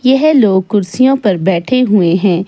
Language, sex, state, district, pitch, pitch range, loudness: Hindi, female, Himachal Pradesh, Shimla, 205 Hz, 185-255 Hz, -11 LUFS